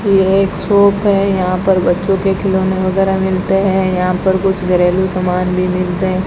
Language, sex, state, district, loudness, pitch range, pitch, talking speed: Hindi, female, Rajasthan, Bikaner, -14 LUFS, 185-195 Hz, 190 Hz, 190 wpm